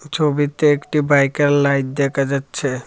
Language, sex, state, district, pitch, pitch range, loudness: Bengali, male, Tripura, Dhalai, 145 Hz, 140-150 Hz, -17 LUFS